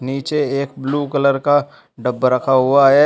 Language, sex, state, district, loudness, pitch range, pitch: Hindi, male, Uttar Pradesh, Shamli, -17 LUFS, 130-145 Hz, 140 Hz